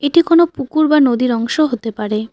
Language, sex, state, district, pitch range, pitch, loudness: Bengali, female, West Bengal, Cooch Behar, 230-310 Hz, 275 Hz, -15 LUFS